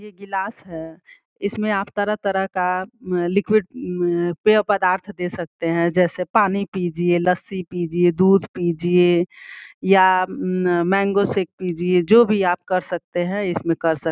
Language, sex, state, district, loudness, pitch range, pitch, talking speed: Hindi, female, Uttar Pradesh, Gorakhpur, -20 LUFS, 175-200 Hz, 185 Hz, 155 wpm